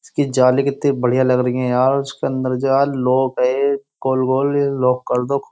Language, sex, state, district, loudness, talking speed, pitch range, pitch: Hindi, male, Uttar Pradesh, Jyotiba Phule Nagar, -18 LUFS, 195 wpm, 125-140 Hz, 130 Hz